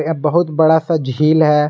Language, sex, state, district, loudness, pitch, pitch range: Hindi, male, Jharkhand, Garhwa, -14 LUFS, 160 Hz, 150-160 Hz